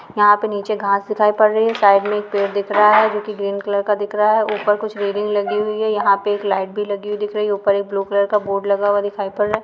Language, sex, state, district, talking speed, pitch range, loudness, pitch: Hindi, female, Uttar Pradesh, Ghazipur, 320 wpm, 200-210 Hz, -18 LUFS, 205 Hz